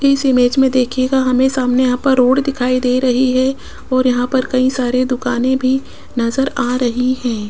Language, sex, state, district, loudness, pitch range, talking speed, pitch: Hindi, female, Rajasthan, Jaipur, -15 LUFS, 250-260 Hz, 190 wpm, 255 Hz